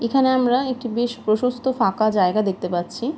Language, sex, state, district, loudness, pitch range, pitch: Bengali, female, West Bengal, Purulia, -21 LUFS, 215-255 Hz, 240 Hz